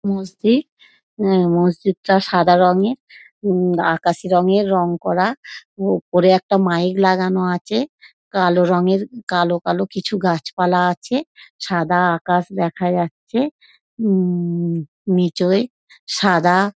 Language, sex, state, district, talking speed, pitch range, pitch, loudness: Bengali, female, West Bengal, Dakshin Dinajpur, 110 wpm, 175-200 Hz, 185 Hz, -18 LUFS